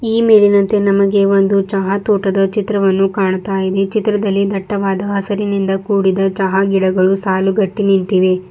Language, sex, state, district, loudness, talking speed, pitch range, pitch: Kannada, female, Karnataka, Bidar, -14 LUFS, 120 wpm, 195-200 Hz, 195 Hz